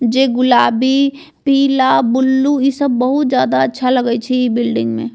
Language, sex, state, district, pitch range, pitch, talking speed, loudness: Bajjika, female, Bihar, Vaishali, 240-275 Hz, 255 Hz, 150 wpm, -14 LUFS